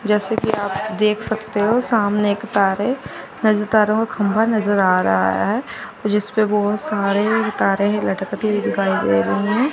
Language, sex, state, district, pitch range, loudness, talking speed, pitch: Hindi, female, Chandigarh, Chandigarh, 200-220 Hz, -18 LUFS, 165 wpm, 210 Hz